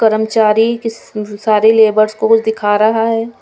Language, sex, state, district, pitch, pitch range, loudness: Hindi, female, Punjab, Kapurthala, 220 Hz, 215-225 Hz, -12 LUFS